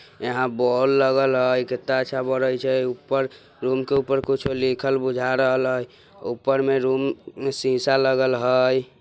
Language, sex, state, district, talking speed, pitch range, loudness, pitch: Bajjika, male, Bihar, Vaishali, 145 wpm, 130-135 Hz, -22 LUFS, 130 Hz